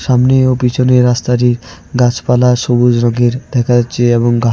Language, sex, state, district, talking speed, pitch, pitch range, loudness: Bengali, male, West Bengal, Alipurduar, 145 wpm, 125 Hz, 120-125 Hz, -12 LUFS